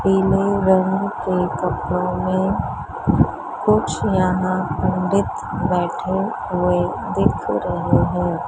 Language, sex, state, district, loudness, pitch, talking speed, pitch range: Hindi, male, Maharashtra, Mumbai Suburban, -20 LUFS, 185 Hz, 90 wpm, 180-195 Hz